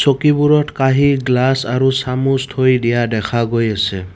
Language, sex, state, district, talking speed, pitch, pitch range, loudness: Assamese, male, Assam, Kamrup Metropolitan, 145 wpm, 130 Hz, 120-135 Hz, -15 LUFS